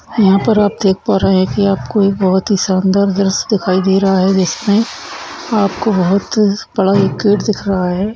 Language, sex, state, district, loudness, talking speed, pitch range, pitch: Hindi, female, Uttarakhand, Tehri Garhwal, -14 LUFS, 200 wpm, 190-210 Hz, 195 Hz